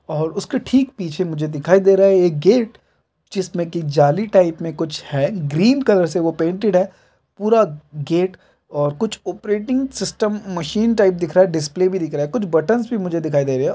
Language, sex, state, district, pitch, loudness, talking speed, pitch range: Hindi, male, Jharkhand, Jamtara, 185 Hz, -18 LUFS, 210 wpm, 160-210 Hz